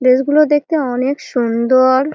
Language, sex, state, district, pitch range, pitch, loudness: Bengali, female, West Bengal, Malda, 255-295 Hz, 260 Hz, -14 LUFS